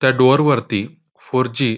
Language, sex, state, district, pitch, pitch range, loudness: Marathi, male, Maharashtra, Nagpur, 130 Hz, 120-140 Hz, -17 LUFS